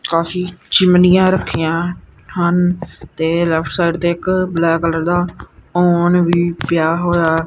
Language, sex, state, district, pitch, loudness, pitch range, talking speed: Punjabi, male, Punjab, Kapurthala, 175 Hz, -15 LUFS, 165-180 Hz, 130 wpm